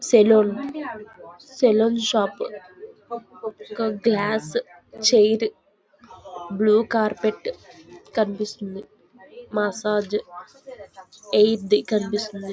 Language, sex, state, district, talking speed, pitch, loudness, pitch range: Telugu, female, Andhra Pradesh, Visakhapatnam, 55 wpm, 215 Hz, -22 LUFS, 205-230 Hz